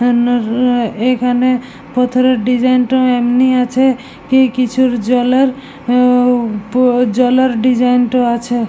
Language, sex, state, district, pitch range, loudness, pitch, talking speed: Bengali, male, West Bengal, Jalpaiguri, 245-255 Hz, -13 LUFS, 250 Hz, 95 wpm